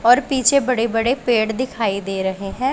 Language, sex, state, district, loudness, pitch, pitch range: Hindi, female, Punjab, Pathankot, -19 LUFS, 235 Hz, 220-255 Hz